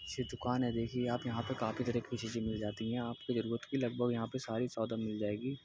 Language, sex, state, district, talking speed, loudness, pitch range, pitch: Hindi, male, Uttar Pradesh, Budaun, 245 wpm, -37 LUFS, 115-125 Hz, 120 Hz